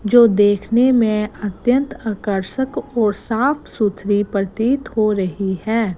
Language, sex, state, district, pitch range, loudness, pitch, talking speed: Hindi, female, Gujarat, Gandhinagar, 205-240 Hz, -18 LUFS, 215 Hz, 120 wpm